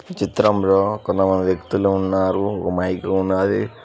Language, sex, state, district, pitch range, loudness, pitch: Telugu, male, Telangana, Mahabubabad, 95-100 Hz, -19 LUFS, 95 Hz